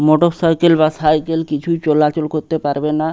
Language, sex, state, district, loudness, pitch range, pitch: Bengali, male, West Bengal, Paschim Medinipur, -16 LUFS, 150-165 Hz, 155 Hz